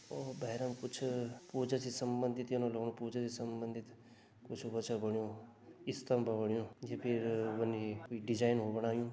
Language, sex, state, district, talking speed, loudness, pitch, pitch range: Garhwali, male, Uttarakhand, Tehri Garhwal, 140 wpm, -39 LUFS, 115 Hz, 115-125 Hz